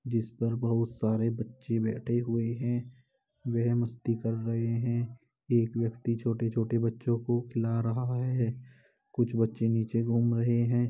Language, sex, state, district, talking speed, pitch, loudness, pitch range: Hindi, male, Uttar Pradesh, Muzaffarnagar, 150 wpm, 115 Hz, -30 LUFS, 115-120 Hz